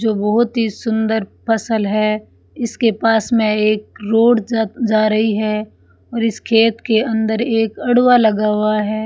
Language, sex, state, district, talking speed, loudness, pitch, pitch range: Hindi, female, Rajasthan, Bikaner, 165 wpm, -16 LUFS, 220 Hz, 215-225 Hz